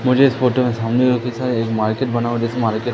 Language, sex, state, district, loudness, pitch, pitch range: Hindi, male, Madhya Pradesh, Katni, -18 LUFS, 120 Hz, 115-125 Hz